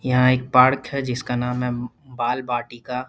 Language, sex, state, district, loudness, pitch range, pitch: Hindi, male, Bihar, Lakhisarai, -21 LUFS, 125-130 Hz, 125 Hz